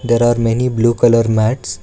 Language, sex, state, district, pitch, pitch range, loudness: English, male, Karnataka, Bangalore, 115 Hz, 115-120 Hz, -14 LUFS